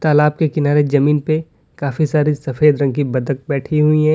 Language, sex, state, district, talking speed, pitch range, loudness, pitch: Hindi, male, Uttar Pradesh, Lalitpur, 200 wpm, 140-155 Hz, -16 LUFS, 150 Hz